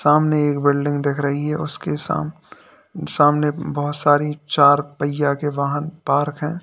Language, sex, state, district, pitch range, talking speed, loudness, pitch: Hindi, male, Uttar Pradesh, Lalitpur, 145-150 Hz, 155 wpm, -19 LUFS, 145 Hz